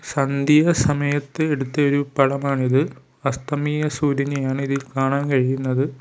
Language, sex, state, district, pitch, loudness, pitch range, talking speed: Malayalam, male, Kerala, Kollam, 140 Hz, -21 LUFS, 135-145 Hz, 90 wpm